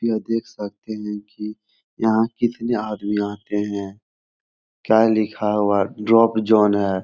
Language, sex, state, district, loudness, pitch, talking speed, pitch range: Hindi, male, Bihar, Jahanabad, -20 LUFS, 105 Hz, 145 wpm, 105-110 Hz